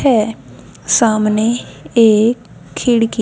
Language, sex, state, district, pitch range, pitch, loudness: Hindi, female, Haryana, Jhajjar, 220-240 Hz, 230 Hz, -14 LUFS